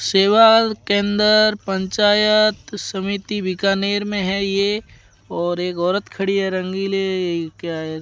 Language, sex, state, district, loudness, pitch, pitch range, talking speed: Hindi, male, Rajasthan, Bikaner, -18 LUFS, 195 Hz, 185-205 Hz, 120 wpm